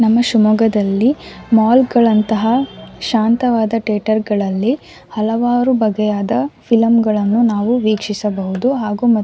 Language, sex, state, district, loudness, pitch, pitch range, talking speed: Kannada, female, Karnataka, Shimoga, -15 LUFS, 225 Hz, 215-240 Hz, 95 wpm